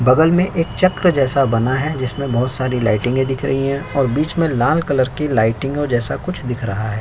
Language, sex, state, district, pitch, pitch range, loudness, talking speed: Hindi, male, Uttar Pradesh, Jyotiba Phule Nagar, 135 Hz, 125-150 Hz, -18 LUFS, 225 wpm